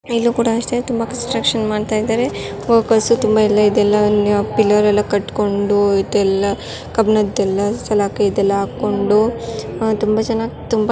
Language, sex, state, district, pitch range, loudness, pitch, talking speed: Kannada, female, Karnataka, Chamarajanagar, 205-225 Hz, -16 LUFS, 215 Hz, 135 wpm